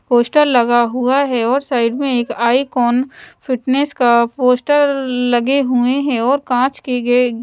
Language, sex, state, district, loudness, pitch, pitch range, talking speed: Hindi, female, Odisha, Sambalpur, -15 LUFS, 250 Hz, 240-270 Hz, 145 wpm